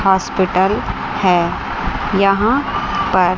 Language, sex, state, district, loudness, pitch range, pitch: Hindi, female, Chandigarh, Chandigarh, -16 LUFS, 190-210 Hz, 195 Hz